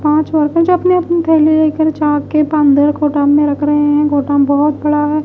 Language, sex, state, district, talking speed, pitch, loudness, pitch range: Hindi, female, Bihar, West Champaran, 215 wpm, 300 Hz, -12 LUFS, 295-315 Hz